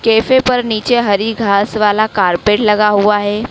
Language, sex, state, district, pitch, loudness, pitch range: Hindi, female, Madhya Pradesh, Dhar, 210 Hz, -13 LUFS, 205-225 Hz